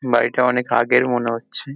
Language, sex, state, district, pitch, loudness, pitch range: Bengali, male, West Bengal, Kolkata, 125 Hz, -18 LUFS, 120-125 Hz